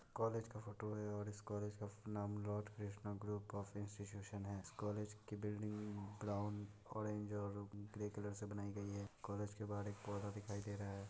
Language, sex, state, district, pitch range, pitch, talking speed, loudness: Hindi, male, Bihar, Muzaffarpur, 100-105 Hz, 105 Hz, 195 wpm, -48 LUFS